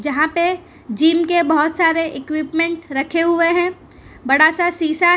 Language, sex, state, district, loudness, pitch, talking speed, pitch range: Hindi, female, Gujarat, Valsad, -17 LUFS, 330 Hz, 160 wpm, 310-345 Hz